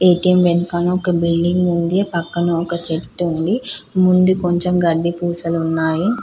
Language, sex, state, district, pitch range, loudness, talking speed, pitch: Telugu, female, Andhra Pradesh, Chittoor, 170-180 Hz, -17 LUFS, 135 wpm, 175 Hz